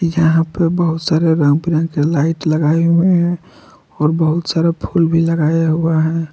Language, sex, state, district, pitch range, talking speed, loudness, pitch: Hindi, male, Jharkhand, Palamu, 160-170 Hz, 170 wpm, -15 LUFS, 165 Hz